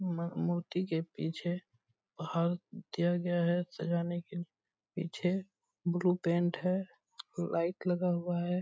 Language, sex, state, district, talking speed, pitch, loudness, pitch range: Hindi, male, Bihar, Purnia, 125 wpm, 175 Hz, -34 LUFS, 170-180 Hz